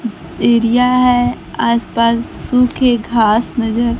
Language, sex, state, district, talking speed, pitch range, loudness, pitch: Hindi, female, Bihar, Kaimur, 90 wpm, 230-245 Hz, -14 LUFS, 235 Hz